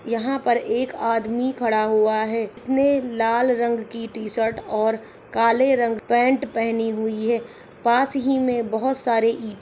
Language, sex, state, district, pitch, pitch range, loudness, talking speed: Hindi, female, Rajasthan, Churu, 230 Hz, 225-250 Hz, -22 LUFS, 155 wpm